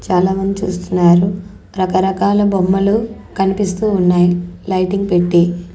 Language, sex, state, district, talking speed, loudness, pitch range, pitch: Telugu, female, Andhra Pradesh, Annamaya, 95 wpm, -15 LUFS, 180-195 Hz, 185 Hz